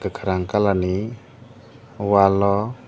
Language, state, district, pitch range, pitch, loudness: Kokborok, Tripura, Dhalai, 100-120 Hz, 105 Hz, -20 LUFS